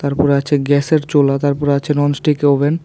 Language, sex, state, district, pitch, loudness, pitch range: Bengali, male, Tripura, West Tripura, 145 Hz, -15 LUFS, 140-145 Hz